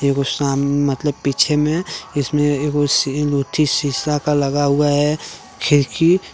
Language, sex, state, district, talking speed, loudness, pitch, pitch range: Hindi, male, Jharkhand, Deoghar, 105 wpm, -18 LUFS, 145 Hz, 140-150 Hz